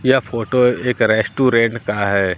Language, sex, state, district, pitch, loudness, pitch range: Hindi, male, Bihar, Katihar, 115 Hz, -16 LUFS, 105-125 Hz